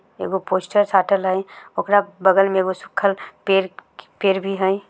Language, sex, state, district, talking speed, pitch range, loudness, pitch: Maithili, female, Bihar, Samastipur, 145 wpm, 190-200 Hz, -20 LUFS, 195 Hz